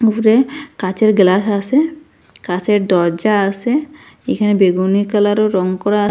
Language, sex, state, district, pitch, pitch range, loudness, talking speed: Bengali, female, Assam, Hailakandi, 205 Hz, 190-230 Hz, -15 LUFS, 120 wpm